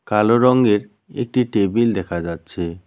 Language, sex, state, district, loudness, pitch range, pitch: Bengali, male, West Bengal, Cooch Behar, -18 LUFS, 85-115 Hz, 105 Hz